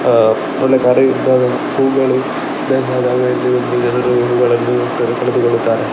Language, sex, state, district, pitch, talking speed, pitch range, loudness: Kannada, male, Karnataka, Dakshina Kannada, 125 Hz, 110 wpm, 120-130 Hz, -14 LUFS